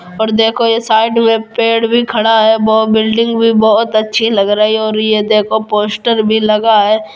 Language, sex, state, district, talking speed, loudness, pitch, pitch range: Hindi, female, Uttar Pradesh, Jyotiba Phule Nagar, 200 wpm, -11 LUFS, 220 Hz, 215-225 Hz